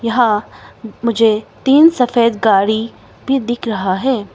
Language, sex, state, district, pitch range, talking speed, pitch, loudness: Hindi, female, Arunachal Pradesh, Longding, 220-250 Hz, 125 wpm, 230 Hz, -14 LUFS